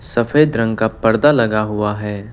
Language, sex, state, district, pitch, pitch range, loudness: Hindi, male, West Bengal, Darjeeling, 110 Hz, 105-120 Hz, -16 LUFS